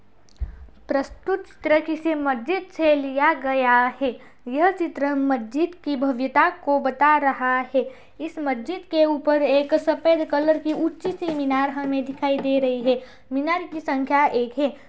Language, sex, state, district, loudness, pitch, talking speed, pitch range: Hindi, female, Uttar Pradesh, Budaun, -22 LUFS, 285 Hz, 155 wpm, 270-315 Hz